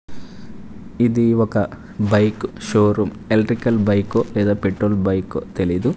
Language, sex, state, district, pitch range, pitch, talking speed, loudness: Telugu, male, Andhra Pradesh, Manyam, 100-115 Hz, 105 Hz, 100 wpm, -19 LUFS